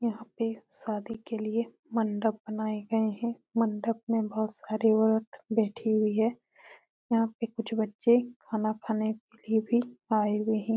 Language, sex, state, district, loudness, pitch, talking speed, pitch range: Hindi, female, Bihar, Araria, -30 LUFS, 225 Hz, 160 wpm, 215-230 Hz